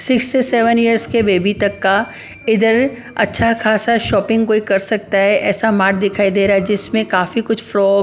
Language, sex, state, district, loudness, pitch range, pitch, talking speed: Hindi, female, Punjab, Pathankot, -14 LUFS, 200-230 Hz, 215 Hz, 200 wpm